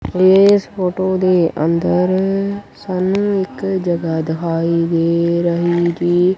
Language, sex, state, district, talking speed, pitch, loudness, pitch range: Punjabi, male, Punjab, Kapurthala, 105 wpm, 180 Hz, -16 LUFS, 170-190 Hz